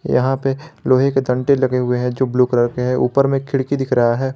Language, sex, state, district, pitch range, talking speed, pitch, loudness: Hindi, male, Jharkhand, Garhwa, 125-135 Hz, 260 wpm, 130 Hz, -17 LUFS